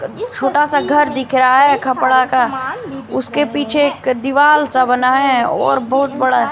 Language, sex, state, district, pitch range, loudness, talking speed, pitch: Hindi, female, Bihar, West Champaran, 255-290 Hz, -14 LUFS, 165 wpm, 265 Hz